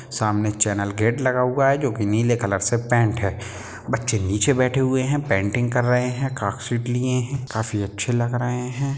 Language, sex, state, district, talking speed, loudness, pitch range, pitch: Hindi, male, Bihar, Sitamarhi, 195 wpm, -22 LUFS, 105-130 Hz, 120 Hz